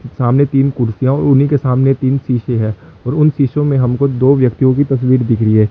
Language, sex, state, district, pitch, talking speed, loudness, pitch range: Hindi, male, Chandigarh, Chandigarh, 130 Hz, 230 wpm, -13 LUFS, 125-140 Hz